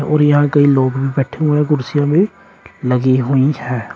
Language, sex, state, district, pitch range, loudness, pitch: Hindi, male, Uttar Pradesh, Shamli, 130-150 Hz, -15 LUFS, 145 Hz